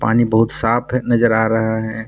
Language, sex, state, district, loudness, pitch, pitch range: Hindi, male, Bihar, Purnia, -16 LUFS, 115 Hz, 110-120 Hz